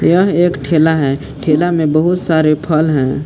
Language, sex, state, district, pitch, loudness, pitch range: Hindi, male, Jharkhand, Palamu, 155 Hz, -13 LUFS, 145-170 Hz